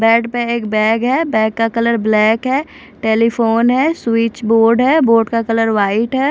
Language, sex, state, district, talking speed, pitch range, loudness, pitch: Hindi, female, Odisha, Khordha, 190 wpm, 225-240 Hz, -14 LUFS, 230 Hz